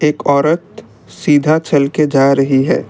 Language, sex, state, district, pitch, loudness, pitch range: Hindi, male, Assam, Kamrup Metropolitan, 145 Hz, -13 LUFS, 140-155 Hz